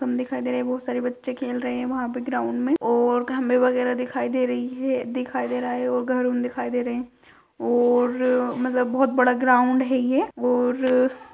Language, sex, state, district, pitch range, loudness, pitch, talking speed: Hindi, female, Bihar, East Champaran, 245-255 Hz, -23 LUFS, 250 Hz, 220 wpm